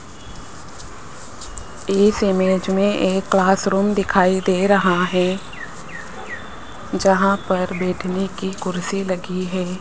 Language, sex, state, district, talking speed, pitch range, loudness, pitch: Hindi, female, Rajasthan, Jaipur, 105 wpm, 180-195 Hz, -19 LUFS, 185 Hz